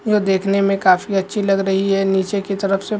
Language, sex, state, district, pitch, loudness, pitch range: Hindi, male, Uttarakhand, Uttarkashi, 195 Hz, -18 LUFS, 195-200 Hz